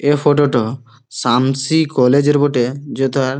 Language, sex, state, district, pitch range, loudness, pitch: Bengali, male, West Bengal, Malda, 125-145 Hz, -15 LUFS, 135 Hz